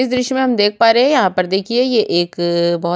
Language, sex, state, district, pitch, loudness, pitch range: Hindi, female, Chhattisgarh, Sukma, 210 Hz, -15 LUFS, 175-250 Hz